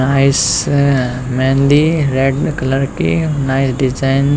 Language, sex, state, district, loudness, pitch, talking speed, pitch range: Hindi, male, Haryana, Rohtak, -14 LUFS, 135 Hz, 95 wpm, 130-140 Hz